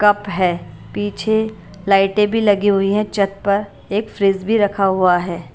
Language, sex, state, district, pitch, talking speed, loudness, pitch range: Hindi, female, Himachal Pradesh, Shimla, 200 Hz, 175 wpm, -17 LUFS, 195-210 Hz